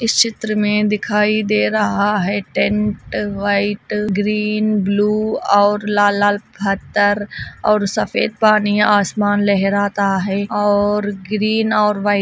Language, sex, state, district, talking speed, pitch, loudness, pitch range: Hindi, female, Andhra Pradesh, Anantapur, 115 wpm, 205 Hz, -17 LUFS, 205-210 Hz